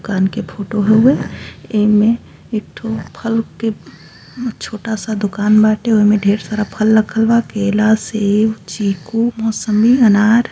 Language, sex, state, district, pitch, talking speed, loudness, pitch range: Bhojpuri, female, Uttar Pradesh, Gorakhpur, 215 Hz, 135 wpm, -15 LUFS, 210-225 Hz